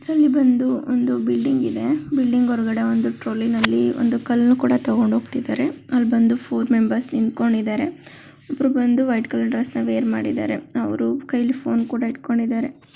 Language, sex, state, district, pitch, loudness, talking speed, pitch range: Kannada, female, Karnataka, Mysore, 240 Hz, -20 LUFS, 125 wpm, 225-260 Hz